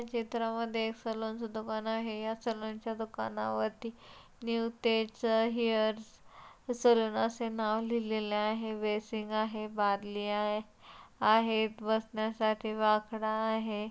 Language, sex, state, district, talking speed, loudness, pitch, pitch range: Marathi, female, Maharashtra, Solapur, 115 wpm, -33 LUFS, 220 Hz, 215-225 Hz